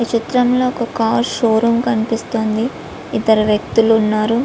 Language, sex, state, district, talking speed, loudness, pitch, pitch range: Telugu, female, Andhra Pradesh, Visakhapatnam, 135 wpm, -16 LUFS, 225 Hz, 220-235 Hz